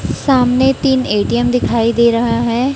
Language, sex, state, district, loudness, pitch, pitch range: Hindi, female, Chhattisgarh, Raipur, -14 LUFS, 245 Hz, 235-265 Hz